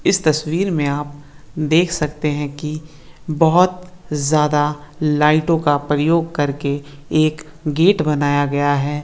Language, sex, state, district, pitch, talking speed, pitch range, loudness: Hindi, male, Bihar, Lakhisarai, 150 Hz, 120 wpm, 145-160 Hz, -18 LUFS